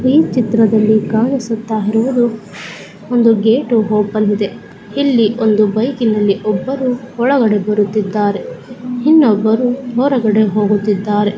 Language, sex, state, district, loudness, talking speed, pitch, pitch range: Kannada, female, Karnataka, Raichur, -14 LUFS, 90 wpm, 220 Hz, 210-245 Hz